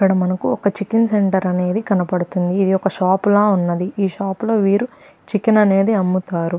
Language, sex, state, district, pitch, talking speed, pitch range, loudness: Telugu, female, Andhra Pradesh, Krishna, 195 Hz, 175 wpm, 185-210 Hz, -17 LUFS